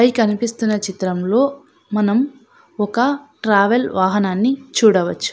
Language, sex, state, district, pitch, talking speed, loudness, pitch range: Telugu, female, Andhra Pradesh, Anantapur, 225 Hz, 90 wpm, -18 LUFS, 205-255 Hz